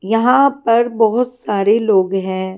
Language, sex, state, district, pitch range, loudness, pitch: Hindi, female, Himachal Pradesh, Shimla, 195-240 Hz, -15 LUFS, 220 Hz